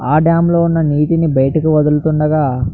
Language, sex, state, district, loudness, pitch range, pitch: Telugu, male, Andhra Pradesh, Anantapur, -13 LUFS, 150-160 Hz, 155 Hz